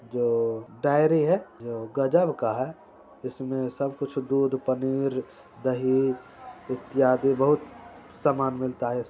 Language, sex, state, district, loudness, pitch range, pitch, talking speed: Hindi, male, Bihar, Saran, -26 LUFS, 125-135 Hz, 130 Hz, 120 wpm